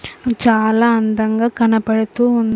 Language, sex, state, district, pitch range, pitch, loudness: Telugu, female, Andhra Pradesh, Sri Satya Sai, 220-235 Hz, 225 Hz, -15 LUFS